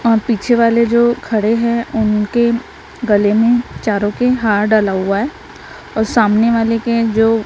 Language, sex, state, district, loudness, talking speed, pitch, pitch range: Hindi, female, Maharashtra, Gondia, -14 LUFS, 160 wpm, 230 Hz, 215-235 Hz